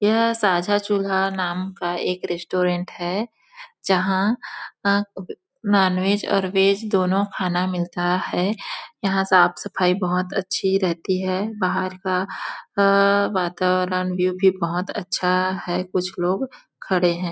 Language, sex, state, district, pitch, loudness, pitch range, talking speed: Hindi, female, Chhattisgarh, Bilaspur, 185 Hz, -22 LUFS, 180-200 Hz, 130 wpm